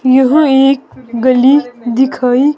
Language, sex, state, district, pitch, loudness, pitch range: Hindi, female, Himachal Pradesh, Shimla, 260 Hz, -11 LUFS, 250-275 Hz